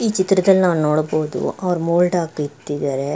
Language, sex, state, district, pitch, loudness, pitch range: Kannada, female, Karnataka, Chamarajanagar, 170 Hz, -18 LUFS, 150-185 Hz